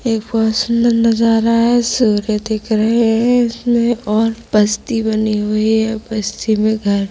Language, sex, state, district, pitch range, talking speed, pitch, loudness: Hindi, female, Uttar Pradesh, Budaun, 215-230 Hz, 160 wpm, 225 Hz, -15 LUFS